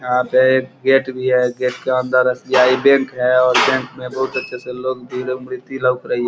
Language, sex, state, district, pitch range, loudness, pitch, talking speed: Hindi, male, Bihar, Gopalganj, 125-130 Hz, -17 LUFS, 130 Hz, 180 wpm